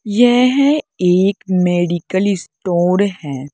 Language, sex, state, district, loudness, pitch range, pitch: Hindi, female, Uttar Pradesh, Saharanpur, -15 LUFS, 175-210 Hz, 185 Hz